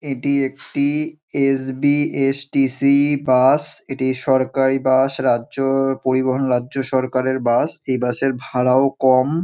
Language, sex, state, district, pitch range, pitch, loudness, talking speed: Bengali, male, West Bengal, North 24 Parganas, 130-140 Hz, 135 Hz, -18 LUFS, 120 wpm